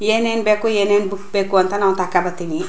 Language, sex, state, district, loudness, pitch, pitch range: Kannada, female, Karnataka, Chamarajanagar, -18 LUFS, 200 Hz, 190-215 Hz